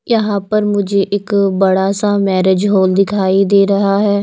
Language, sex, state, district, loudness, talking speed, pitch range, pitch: Hindi, female, Maharashtra, Mumbai Suburban, -13 LUFS, 170 wpm, 195-205 Hz, 200 Hz